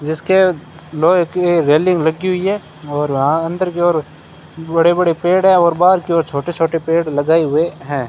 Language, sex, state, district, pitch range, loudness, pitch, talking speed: Hindi, male, Rajasthan, Bikaner, 155-175 Hz, -15 LUFS, 165 Hz, 195 wpm